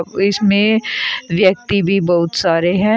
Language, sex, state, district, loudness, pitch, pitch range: Hindi, female, Uttar Pradesh, Shamli, -15 LUFS, 195 Hz, 175-205 Hz